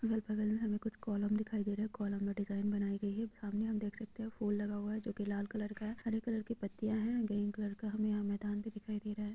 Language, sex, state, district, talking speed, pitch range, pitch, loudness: Hindi, female, Jharkhand, Sahebganj, 300 wpm, 205-220 Hz, 210 Hz, -39 LUFS